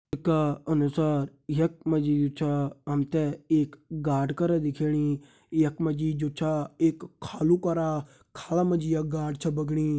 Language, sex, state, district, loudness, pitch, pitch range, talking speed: Hindi, male, Uttarakhand, Uttarkashi, -27 LUFS, 155 Hz, 145-160 Hz, 175 wpm